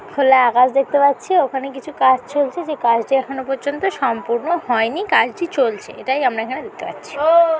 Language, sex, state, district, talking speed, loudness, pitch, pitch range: Bengali, female, West Bengal, North 24 Parganas, 165 wpm, -17 LUFS, 275 Hz, 255-320 Hz